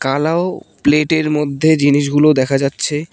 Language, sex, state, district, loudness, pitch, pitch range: Bengali, male, West Bengal, Cooch Behar, -15 LUFS, 150 Hz, 140-155 Hz